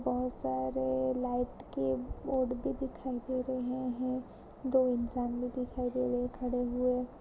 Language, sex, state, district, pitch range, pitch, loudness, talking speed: Hindi, female, Bihar, Kishanganj, 245-255 Hz, 250 Hz, -34 LUFS, 160 wpm